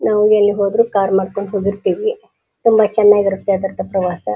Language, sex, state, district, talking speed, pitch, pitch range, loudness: Kannada, female, Karnataka, Dharwad, 150 wpm, 200 Hz, 195-210 Hz, -15 LUFS